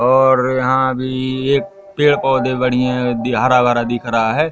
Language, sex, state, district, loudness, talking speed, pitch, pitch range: Hindi, male, Madhya Pradesh, Katni, -16 LUFS, 170 wpm, 130 Hz, 125-130 Hz